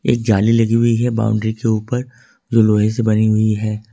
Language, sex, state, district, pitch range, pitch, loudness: Hindi, male, Jharkhand, Ranchi, 110-115 Hz, 110 Hz, -16 LUFS